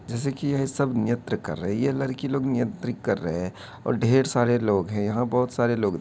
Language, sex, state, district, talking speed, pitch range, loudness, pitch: Hindi, male, Bihar, Begusarai, 250 wpm, 110-135 Hz, -25 LUFS, 120 Hz